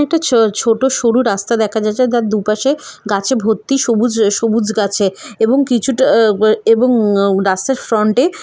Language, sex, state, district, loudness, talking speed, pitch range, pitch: Bengali, female, West Bengal, Malda, -14 LUFS, 140 wpm, 215-255 Hz, 225 Hz